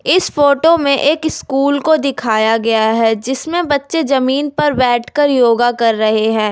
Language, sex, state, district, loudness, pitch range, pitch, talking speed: Hindi, female, Delhi, New Delhi, -14 LUFS, 230-295 Hz, 270 Hz, 165 wpm